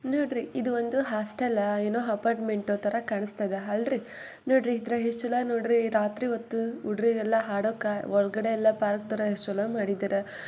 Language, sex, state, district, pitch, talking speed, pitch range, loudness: Kannada, female, Karnataka, Bellary, 220 Hz, 155 wpm, 205-235 Hz, -28 LUFS